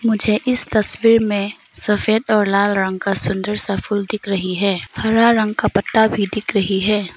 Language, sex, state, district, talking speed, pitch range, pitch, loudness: Hindi, female, Arunachal Pradesh, Papum Pare, 195 wpm, 200-220 Hz, 210 Hz, -17 LUFS